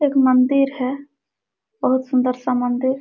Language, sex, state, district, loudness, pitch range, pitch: Hindi, female, Jharkhand, Sahebganj, -19 LUFS, 255-275 Hz, 260 Hz